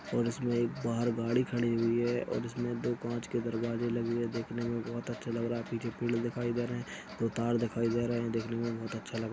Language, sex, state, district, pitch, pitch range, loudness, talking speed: Hindi, male, Chhattisgarh, Kabirdham, 120 Hz, 115-120 Hz, -34 LUFS, 265 wpm